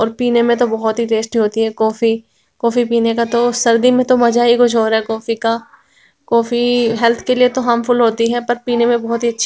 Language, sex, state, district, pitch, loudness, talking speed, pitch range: Hindi, female, Bihar, Begusarai, 235 Hz, -15 LUFS, 240 wpm, 230-240 Hz